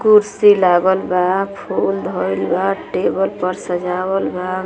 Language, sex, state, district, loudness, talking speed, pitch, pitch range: Bhojpuri, female, Uttar Pradesh, Gorakhpur, -17 LUFS, 130 wpm, 185 Hz, 180-195 Hz